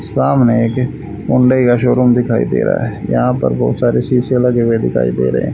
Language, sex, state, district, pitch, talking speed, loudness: Hindi, male, Haryana, Charkhi Dadri, 120 Hz, 215 wpm, -14 LUFS